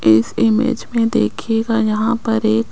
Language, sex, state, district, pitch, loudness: Hindi, female, Rajasthan, Jaipur, 225 Hz, -17 LUFS